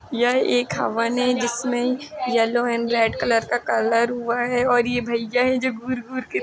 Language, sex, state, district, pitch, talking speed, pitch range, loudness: Hindi, female, Uttar Pradesh, Jalaun, 240 Hz, 195 wpm, 230-250 Hz, -21 LUFS